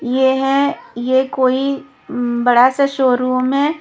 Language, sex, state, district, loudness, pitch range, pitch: Hindi, female, Punjab, Kapurthala, -16 LUFS, 250-275 Hz, 265 Hz